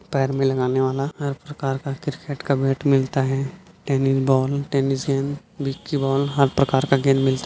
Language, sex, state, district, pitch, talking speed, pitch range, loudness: Hindi, male, Chhattisgarh, Bilaspur, 135 Hz, 195 wpm, 135-140 Hz, -22 LUFS